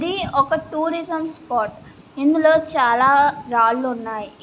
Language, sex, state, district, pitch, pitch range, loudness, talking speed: Telugu, female, Andhra Pradesh, Srikakulam, 290 Hz, 245-320 Hz, -19 LUFS, 110 wpm